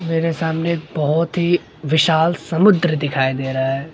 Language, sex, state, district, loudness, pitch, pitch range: Hindi, male, Maharashtra, Mumbai Suburban, -18 LUFS, 160 Hz, 145-170 Hz